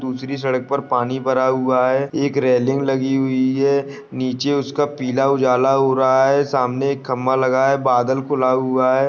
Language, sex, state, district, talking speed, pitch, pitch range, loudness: Hindi, male, Chhattisgarh, Bastar, 180 wpm, 130 Hz, 130-140 Hz, -18 LUFS